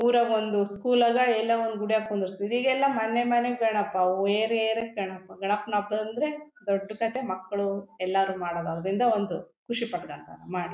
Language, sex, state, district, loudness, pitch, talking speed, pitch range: Kannada, female, Karnataka, Bellary, -27 LUFS, 215 Hz, 155 wpm, 195-235 Hz